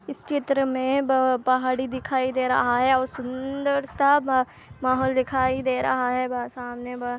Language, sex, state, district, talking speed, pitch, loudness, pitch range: Hindi, female, Andhra Pradesh, Anantapur, 150 wpm, 260 Hz, -24 LUFS, 255-265 Hz